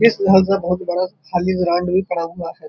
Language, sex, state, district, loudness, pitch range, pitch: Hindi, male, Uttar Pradesh, Muzaffarnagar, -18 LUFS, 175-190 Hz, 180 Hz